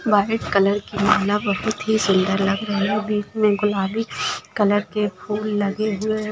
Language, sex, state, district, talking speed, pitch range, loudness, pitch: Hindi, female, Bihar, Gaya, 170 wpm, 200-215 Hz, -21 LUFS, 210 Hz